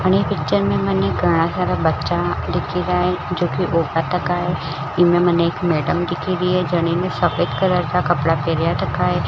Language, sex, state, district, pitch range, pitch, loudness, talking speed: Marwari, female, Rajasthan, Churu, 165-180 Hz, 175 Hz, -19 LUFS, 170 wpm